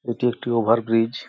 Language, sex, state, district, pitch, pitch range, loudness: Bengali, male, West Bengal, Jhargram, 115 Hz, 115-120 Hz, -21 LUFS